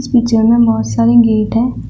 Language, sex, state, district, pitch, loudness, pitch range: Hindi, female, Uttar Pradesh, Shamli, 230 Hz, -11 LUFS, 220-235 Hz